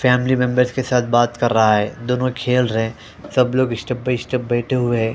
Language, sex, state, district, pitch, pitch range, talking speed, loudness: Hindi, male, Haryana, Jhajjar, 125 Hz, 115-125 Hz, 235 wpm, -18 LUFS